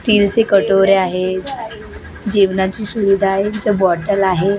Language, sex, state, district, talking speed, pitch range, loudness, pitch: Marathi, female, Maharashtra, Gondia, 115 wpm, 190-210 Hz, -15 LUFS, 195 Hz